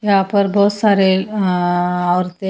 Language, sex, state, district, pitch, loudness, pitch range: Hindi, female, Haryana, Charkhi Dadri, 190 Hz, -16 LUFS, 180-200 Hz